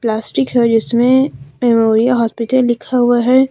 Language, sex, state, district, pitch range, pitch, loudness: Hindi, female, Jharkhand, Deoghar, 225-250 Hz, 240 Hz, -14 LUFS